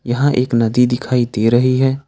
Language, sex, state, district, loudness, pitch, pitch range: Hindi, male, Jharkhand, Ranchi, -15 LUFS, 125 Hz, 120-130 Hz